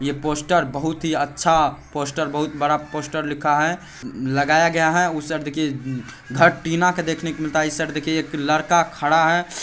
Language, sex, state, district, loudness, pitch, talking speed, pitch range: Hindi, male, Bihar, Saharsa, -20 LUFS, 155 Hz, 170 wpm, 150-165 Hz